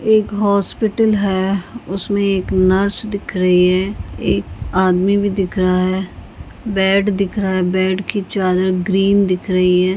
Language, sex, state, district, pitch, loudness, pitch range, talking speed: Hindi, female, Maharashtra, Pune, 190 Hz, -16 LUFS, 185-200 Hz, 155 wpm